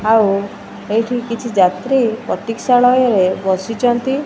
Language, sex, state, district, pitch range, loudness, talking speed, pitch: Odia, female, Odisha, Malkangiri, 200-245 Hz, -16 LUFS, 100 wpm, 225 Hz